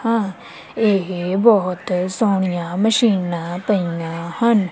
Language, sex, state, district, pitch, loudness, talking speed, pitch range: Punjabi, female, Punjab, Kapurthala, 185 Hz, -19 LUFS, 90 wpm, 175-220 Hz